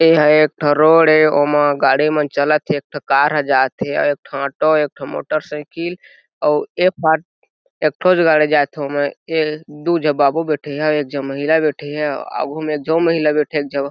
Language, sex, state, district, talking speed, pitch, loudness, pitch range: Chhattisgarhi, male, Chhattisgarh, Jashpur, 220 wpm, 150 Hz, -16 LUFS, 145-155 Hz